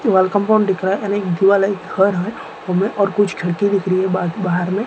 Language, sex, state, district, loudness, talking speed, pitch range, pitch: Hindi, male, Maharashtra, Gondia, -17 LUFS, 270 wpm, 185-205 Hz, 195 Hz